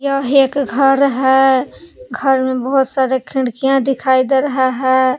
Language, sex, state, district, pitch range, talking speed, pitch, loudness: Hindi, female, Jharkhand, Palamu, 260-275 Hz, 150 wpm, 265 Hz, -14 LUFS